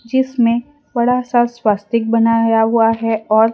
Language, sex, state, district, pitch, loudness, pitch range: Hindi, female, Gujarat, Valsad, 230 Hz, -15 LUFS, 225-240 Hz